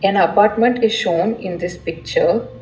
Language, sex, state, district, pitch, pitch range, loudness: English, female, Telangana, Hyderabad, 210 Hz, 180-230 Hz, -17 LUFS